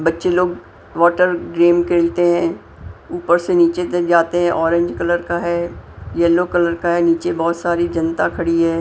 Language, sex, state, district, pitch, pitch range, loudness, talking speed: Hindi, female, Punjab, Pathankot, 170 Hz, 170-175 Hz, -17 LUFS, 175 wpm